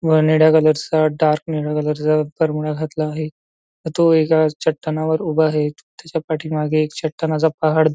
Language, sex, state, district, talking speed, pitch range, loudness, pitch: Marathi, male, Maharashtra, Nagpur, 160 wpm, 155-160 Hz, -18 LUFS, 155 Hz